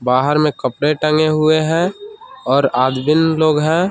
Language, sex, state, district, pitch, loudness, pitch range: Hindi, male, Jharkhand, Palamu, 155 Hz, -15 LUFS, 140-160 Hz